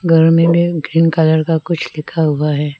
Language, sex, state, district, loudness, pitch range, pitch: Hindi, female, Arunachal Pradesh, Lower Dibang Valley, -14 LUFS, 150-165 Hz, 160 Hz